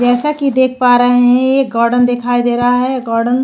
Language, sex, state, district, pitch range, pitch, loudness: Hindi, female, Chhattisgarh, Korba, 245-260 Hz, 245 Hz, -12 LUFS